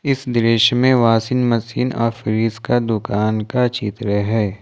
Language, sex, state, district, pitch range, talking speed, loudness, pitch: Hindi, male, Jharkhand, Ranchi, 110-125 Hz, 155 wpm, -18 LUFS, 115 Hz